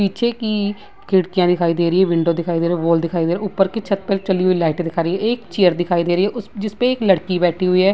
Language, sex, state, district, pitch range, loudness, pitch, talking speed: Hindi, female, Bihar, Vaishali, 175-205 Hz, -18 LUFS, 185 Hz, 300 wpm